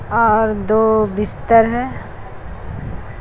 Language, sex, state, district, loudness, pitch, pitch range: Hindi, female, Chhattisgarh, Raipur, -16 LUFS, 220 Hz, 215-230 Hz